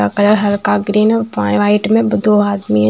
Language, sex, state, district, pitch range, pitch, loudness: Hindi, female, Maharashtra, Washim, 200-210 Hz, 205 Hz, -13 LUFS